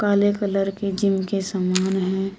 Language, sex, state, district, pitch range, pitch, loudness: Hindi, female, Uttar Pradesh, Shamli, 190-200 Hz, 195 Hz, -22 LUFS